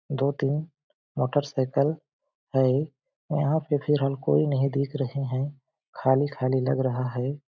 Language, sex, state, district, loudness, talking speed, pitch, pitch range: Hindi, male, Chhattisgarh, Balrampur, -26 LUFS, 125 wpm, 140 Hz, 130-145 Hz